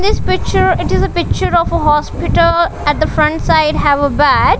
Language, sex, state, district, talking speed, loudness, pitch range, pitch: English, female, Punjab, Kapurthala, 210 wpm, -13 LUFS, 295-335 Hz, 310 Hz